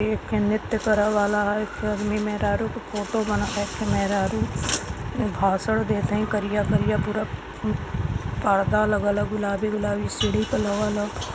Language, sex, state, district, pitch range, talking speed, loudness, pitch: Hindi, female, Uttar Pradesh, Varanasi, 200-215 Hz, 140 wpm, -24 LUFS, 210 Hz